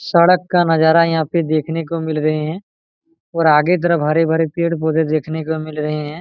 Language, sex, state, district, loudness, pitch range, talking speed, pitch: Hindi, male, Bihar, Araria, -16 LUFS, 155-170 Hz, 200 wpm, 160 Hz